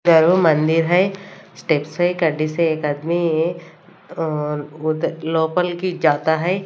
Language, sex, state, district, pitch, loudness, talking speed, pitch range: Hindi, female, Punjab, Kapurthala, 165 Hz, -19 LUFS, 90 wpm, 155-175 Hz